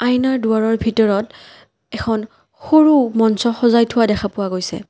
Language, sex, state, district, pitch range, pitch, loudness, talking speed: Assamese, female, Assam, Kamrup Metropolitan, 215-245 Hz, 225 Hz, -16 LUFS, 135 wpm